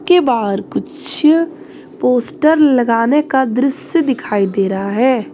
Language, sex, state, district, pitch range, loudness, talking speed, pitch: Hindi, female, Jharkhand, Deoghar, 230-315 Hz, -14 LUFS, 125 wpm, 265 Hz